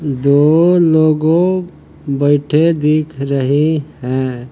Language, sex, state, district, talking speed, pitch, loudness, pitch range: Hindi, male, Uttar Pradesh, Hamirpur, 80 wpm, 150 Hz, -14 LUFS, 140-160 Hz